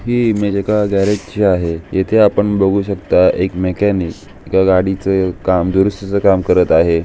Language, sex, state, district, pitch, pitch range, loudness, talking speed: Marathi, male, Maharashtra, Aurangabad, 95 Hz, 90-100 Hz, -14 LUFS, 160 wpm